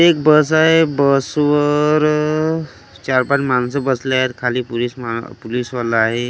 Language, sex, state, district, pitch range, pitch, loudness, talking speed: Marathi, male, Maharashtra, Gondia, 125-150 Hz, 135 Hz, -16 LUFS, 150 wpm